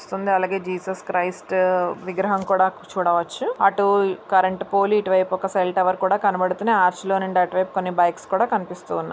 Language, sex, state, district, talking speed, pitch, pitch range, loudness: Telugu, male, Telangana, Nalgonda, 165 wpm, 185 Hz, 185-195 Hz, -21 LUFS